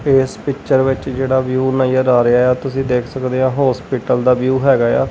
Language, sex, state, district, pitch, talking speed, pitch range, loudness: Punjabi, male, Punjab, Kapurthala, 130 Hz, 235 wpm, 125-135 Hz, -15 LUFS